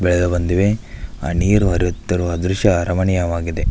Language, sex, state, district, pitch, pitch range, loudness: Kannada, male, Karnataka, Belgaum, 90 Hz, 85-95 Hz, -18 LUFS